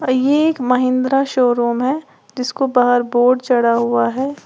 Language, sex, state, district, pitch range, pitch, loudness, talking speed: Hindi, female, Uttar Pradesh, Lalitpur, 240-270 Hz, 250 Hz, -16 LUFS, 150 wpm